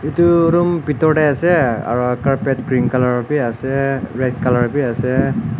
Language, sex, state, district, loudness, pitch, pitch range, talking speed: Nagamese, male, Nagaland, Dimapur, -16 LUFS, 135 Hz, 125-150 Hz, 150 wpm